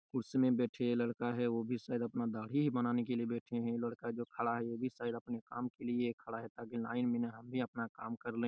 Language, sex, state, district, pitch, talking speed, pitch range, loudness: Hindi, male, Chhattisgarh, Raigarh, 120 Hz, 270 wpm, 115-120 Hz, -38 LUFS